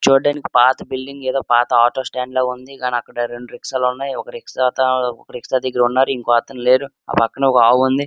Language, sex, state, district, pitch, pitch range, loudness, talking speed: Telugu, male, Andhra Pradesh, Srikakulam, 130 Hz, 120-135 Hz, -18 LUFS, 210 wpm